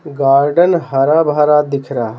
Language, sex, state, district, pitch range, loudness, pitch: Hindi, male, Bihar, Patna, 135-150 Hz, -13 LUFS, 145 Hz